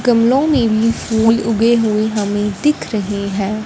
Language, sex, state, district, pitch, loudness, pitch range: Hindi, female, Punjab, Fazilka, 220 Hz, -15 LUFS, 210-235 Hz